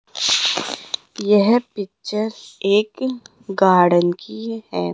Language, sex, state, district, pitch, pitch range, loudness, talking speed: Hindi, female, Rajasthan, Jaipur, 205 Hz, 195-225 Hz, -19 LUFS, 75 wpm